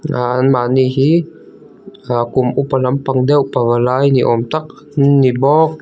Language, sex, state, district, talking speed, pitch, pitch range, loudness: Mizo, male, Mizoram, Aizawl, 165 wpm, 130 Hz, 125-145 Hz, -14 LUFS